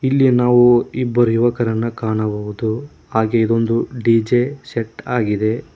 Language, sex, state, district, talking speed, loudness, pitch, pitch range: Kannada, male, Karnataka, Koppal, 105 wpm, -17 LUFS, 115 Hz, 110-125 Hz